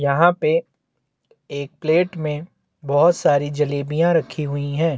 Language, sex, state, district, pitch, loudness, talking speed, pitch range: Hindi, male, Chhattisgarh, Bastar, 150 Hz, -20 LUFS, 130 wpm, 145-170 Hz